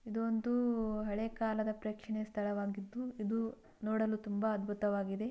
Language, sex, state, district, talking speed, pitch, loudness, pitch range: Kannada, female, Karnataka, Bijapur, 100 wpm, 215 Hz, -37 LUFS, 210-225 Hz